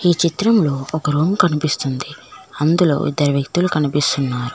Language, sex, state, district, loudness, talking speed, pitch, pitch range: Telugu, female, Telangana, Mahabubabad, -18 LUFS, 120 wpm, 150 Hz, 140-170 Hz